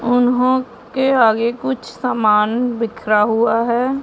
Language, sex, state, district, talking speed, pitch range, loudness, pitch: Hindi, female, Punjab, Pathankot, 120 wpm, 225-250 Hz, -17 LUFS, 240 Hz